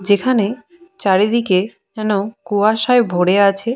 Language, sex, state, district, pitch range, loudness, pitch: Bengali, female, West Bengal, Purulia, 200-235 Hz, -16 LUFS, 215 Hz